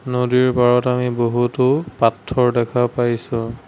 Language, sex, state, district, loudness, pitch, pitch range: Assamese, male, Assam, Sonitpur, -18 LUFS, 120 Hz, 120-125 Hz